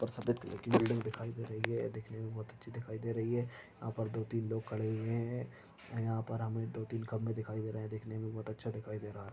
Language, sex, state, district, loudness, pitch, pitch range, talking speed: Hindi, male, Uttar Pradesh, Ghazipur, -39 LUFS, 110 Hz, 110-115 Hz, 290 wpm